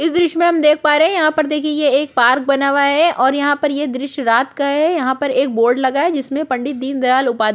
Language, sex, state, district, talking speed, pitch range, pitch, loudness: Hindi, female, Chhattisgarh, Korba, 285 wpm, 260-300 Hz, 280 Hz, -15 LUFS